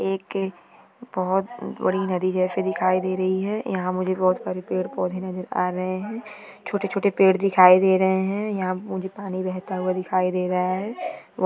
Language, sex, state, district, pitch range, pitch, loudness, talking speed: Hindi, female, Maharashtra, Dhule, 185-195 Hz, 185 Hz, -23 LUFS, 180 wpm